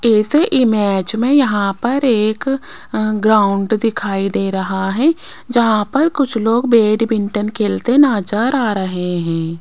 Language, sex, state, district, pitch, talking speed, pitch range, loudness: Hindi, female, Rajasthan, Jaipur, 215 Hz, 130 wpm, 200-245 Hz, -15 LUFS